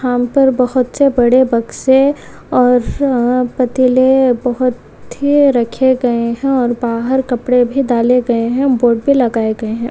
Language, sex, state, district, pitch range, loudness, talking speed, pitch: Hindi, female, Bihar, Supaul, 240-265 Hz, -13 LUFS, 150 wpm, 250 Hz